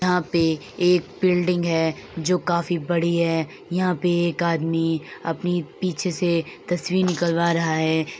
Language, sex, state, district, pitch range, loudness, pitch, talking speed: Hindi, female, Uttar Pradesh, Hamirpur, 165-180 Hz, -23 LUFS, 170 Hz, 140 wpm